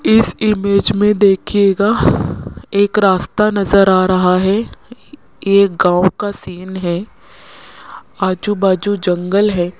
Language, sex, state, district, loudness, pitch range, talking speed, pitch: Hindi, female, Rajasthan, Jaipur, -14 LUFS, 185-205 Hz, 120 wpm, 200 Hz